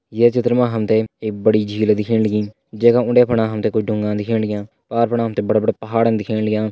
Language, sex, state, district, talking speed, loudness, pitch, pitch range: Hindi, male, Uttarakhand, Uttarkashi, 250 wpm, -18 LUFS, 110 Hz, 105-115 Hz